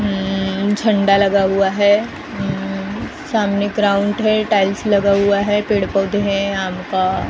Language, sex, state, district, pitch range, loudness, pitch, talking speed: Hindi, female, Maharashtra, Gondia, 195-205 Hz, -17 LUFS, 200 Hz, 155 wpm